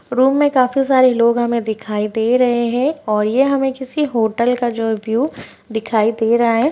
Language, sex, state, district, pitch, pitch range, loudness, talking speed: Hindi, female, Uttarakhand, Tehri Garhwal, 240 Hz, 225-265 Hz, -16 LUFS, 205 wpm